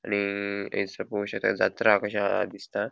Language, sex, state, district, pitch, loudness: Konkani, male, Goa, North and South Goa, 100 Hz, -27 LUFS